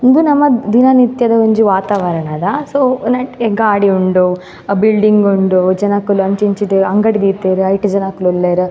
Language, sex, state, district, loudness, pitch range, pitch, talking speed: Tulu, female, Karnataka, Dakshina Kannada, -12 LUFS, 190-230 Hz, 205 Hz, 145 wpm